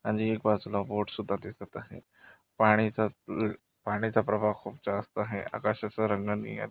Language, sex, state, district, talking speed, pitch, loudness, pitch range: Marathi, male, Maharashtra, Nagpur, 145 wpm, 105 Hz, -30 LUFS, 105-110 Hz